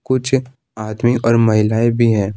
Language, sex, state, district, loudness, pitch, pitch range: Hindi, male, Jharkhand, Ranchi, -15 LUFS, 115 Hz, 110-125 Hz